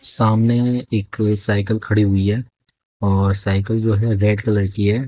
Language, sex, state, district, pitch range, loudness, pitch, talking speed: Hindi, male, Haryana, Jhajjar, 100-115 Hz, -18 LUFS, 110 Hz, 175 wpm